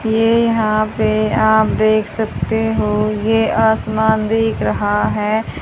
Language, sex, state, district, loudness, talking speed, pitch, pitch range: Hindi, female, Haryana, Charkhi Dadri, -16 LUFS, 130 wpm, 220 Hz, 215-220 Hz